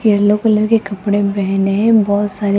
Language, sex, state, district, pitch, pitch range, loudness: Hindi, female, Rajasthan, Jaipur, 205 Hz, 200-215 Hz, -14 LUFS